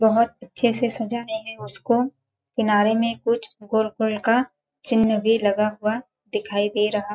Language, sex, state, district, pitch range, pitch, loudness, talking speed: Hindi, female, Chhattisgarh, Balrampur, 210-235 Hz, 225 Hz, -23 LUFS, 150 wpm